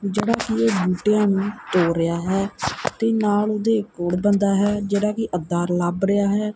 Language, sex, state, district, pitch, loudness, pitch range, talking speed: Punjabi, male, Punjab, Kapurthala, 205 Hz, -21 LUFS, 180-210 Hz, 190 wpm